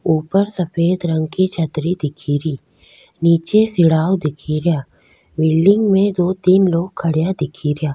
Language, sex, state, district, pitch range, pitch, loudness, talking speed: Rajasthani, female, Rajasthan, Nagaur, 155-185 Hz, 170 Hz, -17 LUFS, 120 wpm